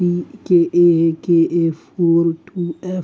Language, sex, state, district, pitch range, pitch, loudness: Hindi, male, Uttar Pradesh, Gorakhpur, 165-175 Hz, 170 Hz, -17 LUFS